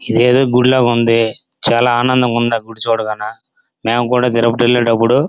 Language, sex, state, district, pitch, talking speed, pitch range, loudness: Telugu, male, Andhra Pradesh, Srikakulam, 120 Hz, 160 wpm, 115-125 Hz, -14 LUFS